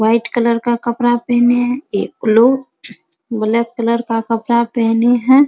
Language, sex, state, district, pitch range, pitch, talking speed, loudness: Hindi, female, Bihar, Saharsa, 230-245 Hz, 235 Hz, 155 wpm, -15 LUFS